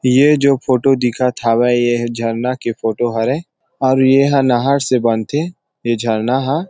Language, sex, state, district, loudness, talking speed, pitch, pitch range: Chhattisgarhi, male, Chhattisgarh, Rajnandgaon, -15 LUFS, 160 wpm, 125 Hz, 120-135 Hz